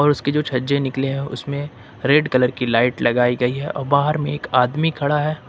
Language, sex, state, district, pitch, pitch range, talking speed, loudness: Hindi, male, Jharkhand, Ranchi, 140 Hz, 125-145 Hz, 230 wpm, -19 LUFS